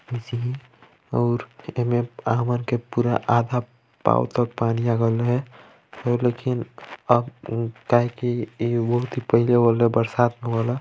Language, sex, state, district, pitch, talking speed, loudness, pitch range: Chhattisgarhi, male, Chhattisgarh, Balrampur, 120 Hz, 130 wpm, -23 LUFS, 115-120 Hz